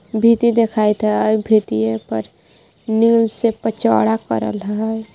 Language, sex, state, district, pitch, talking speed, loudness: Magahi, female, Jharkhand, Palamu, 215 Hz, 130 wpm, -17 LUFS